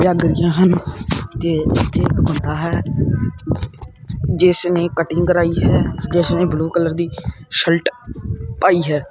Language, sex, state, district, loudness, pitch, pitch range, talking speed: Punjabi, male, Punjab, Kapurthala, -17 LUFS, 170 Hz, 155-175 Hz, 140 wpm